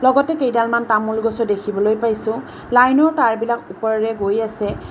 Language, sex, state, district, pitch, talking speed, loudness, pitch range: Assamese, female, Assam, Kamrup Metropolitan, 225 Hz, 135 wpm, -18 LUFS, 215-240 Hz